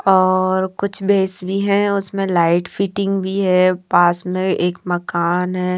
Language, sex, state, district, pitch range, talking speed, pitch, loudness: Hindi, female, Haryana, Charkhi Dadri, 180-195 Hz, 155 wpm, 185 Hz, -17 LUFS